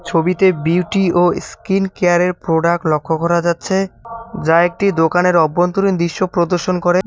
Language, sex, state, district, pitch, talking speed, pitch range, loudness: Bengali, male, West Bengal, Cooch Behar, 175 Hz, 135 wpm, 170-190 Hz, -16 LUFS